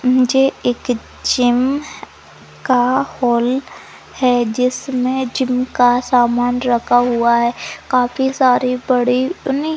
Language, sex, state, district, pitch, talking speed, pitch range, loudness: Hindi, female, Maharashtra, Nagpur, 250 Hz, 100 wpm, 245-260 Hz, -16 LUFS